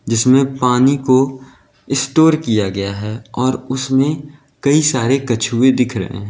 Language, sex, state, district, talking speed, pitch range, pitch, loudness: Hindi, male, Uttar Pradesh, Lalitpur, 145 wpm, 115-135 Hz, 130 Hz, -15 LUFS